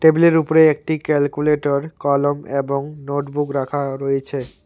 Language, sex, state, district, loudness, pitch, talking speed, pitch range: Bengali, male, West Bengal, Alipurduar, -19 LUFS, 145 Hz, 115 wpm, 140-150 Hz